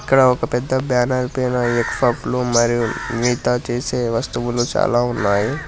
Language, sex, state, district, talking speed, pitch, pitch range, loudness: Telugu, male, Telangana, Hyderabad, 150 wpm, 120 Hz, 120-125 Hz, -19 LUFS